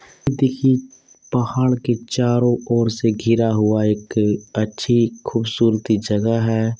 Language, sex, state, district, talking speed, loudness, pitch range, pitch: Hindi, male, Bihar, Jamui, 115 wpm, -19 LUFS, 110-125 Hz, 115 Hz